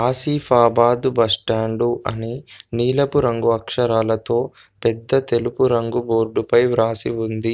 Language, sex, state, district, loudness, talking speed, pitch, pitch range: Telugu, male, Telangana, Komaram Bheem, -19 LUFS, 110 wpm, 120 Hz, 115-125 Hz